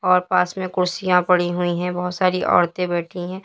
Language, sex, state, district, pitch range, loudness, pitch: Hindi, female, Uttar Pradesh, Lalitpur, 175-185 Hz, -20 LUFS, 180 Hz